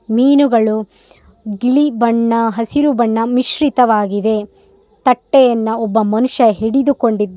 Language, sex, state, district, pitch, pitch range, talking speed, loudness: Kannada, female, Karnataka, Raichur, 230 Hz, 220-255 Hz, 90 wpm, -14 LUFS